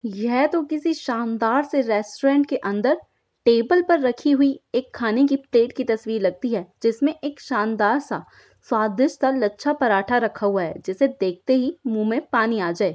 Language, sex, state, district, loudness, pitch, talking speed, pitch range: Hindi, female, Bihar, Saran, -21 LUFS, 245 Hz, 180 wpm, 220-280 Hz